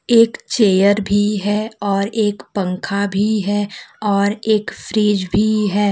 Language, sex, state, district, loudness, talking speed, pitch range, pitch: Hindi, female, Jharkhand, Deoghar, -17 LUFS, 140 wpm, 200-215 Hz, 205 Hz